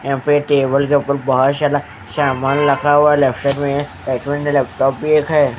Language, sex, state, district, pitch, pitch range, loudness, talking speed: Hindi, male, Haryana, Jhajjar, 140 Hz, 135-145 Hz, -16 LUFS, 225 wpm